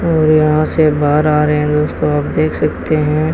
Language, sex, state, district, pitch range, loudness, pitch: Hindi, male, Rajasthan, Bikaner, 150-155 Hz, -13 LUFS, 150 Hz